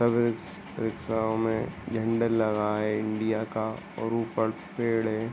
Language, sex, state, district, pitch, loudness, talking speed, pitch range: Hindi, male, Uttar Pradesh, Ghazipur, 110 Hz, -29 LUFS, 135 wpm, 110-115 Hz